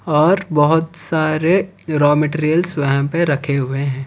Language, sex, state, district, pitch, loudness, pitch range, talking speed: Hindi, male, Odisha, Khordha, 155 Hz, -17 LUFS, 145-165 Hz, 145 wpm